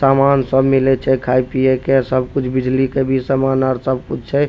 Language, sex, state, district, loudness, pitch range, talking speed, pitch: Maithili, male, Bihar, Supaul, -16 LUFS, 130-135 Hz, 215 wpm, 130 Hz